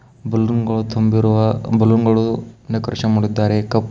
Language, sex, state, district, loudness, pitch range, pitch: Kannada, male, Karnataka, Koppal, -17 LUFS, 110-115 Hz, 110 Hz